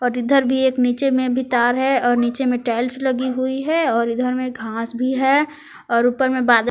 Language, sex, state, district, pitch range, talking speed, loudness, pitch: Hindi, female, Jharkhand, Palamu, 245-265 Hz, 215 wpm, -19 LUFS, 255 Hz